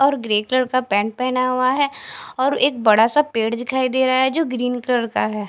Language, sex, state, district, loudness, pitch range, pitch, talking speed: Hindi, female, Punjab, Fazilka, -19 LUFS, 230-260 Hz, 255 Hz, 240 wpm